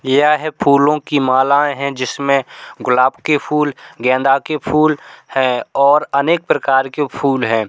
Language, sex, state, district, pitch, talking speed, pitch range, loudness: Hindi, male, Uttar Pradesh, Hamirpur, 140 Hz, 150 wpm, 135-150 Hz, -15 LUFS